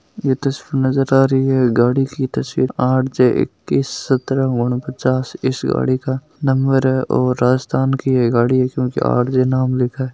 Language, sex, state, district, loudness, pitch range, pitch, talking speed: Marwari, male, Rajasthan, Nagaur, -17 LUFS, 125-135 Hz, 130 Hz, 170 wpm